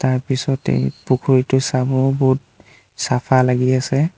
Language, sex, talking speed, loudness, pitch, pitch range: Assamese, male, 115 wpm, -18 LUFS, 130 Hz, 125-135 Hz